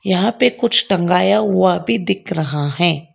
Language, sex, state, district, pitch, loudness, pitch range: Hindi, female, Karnataka, Bangalore, 185 Hz, -16 LUFS, 165-210 Hz